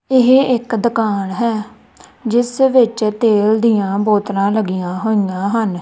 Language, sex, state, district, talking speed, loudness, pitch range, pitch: Punjabi, female, Punjab, Kapurthala, 125 wpm, -15 LUFS, 200-235 Hz, 220 Hz